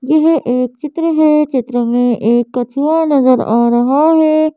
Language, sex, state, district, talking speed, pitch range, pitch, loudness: Hindi, female, Madhya Pradesh, Bhopal, 155 wpm, 245-310 Hz, 275 Hz, -13 LUFS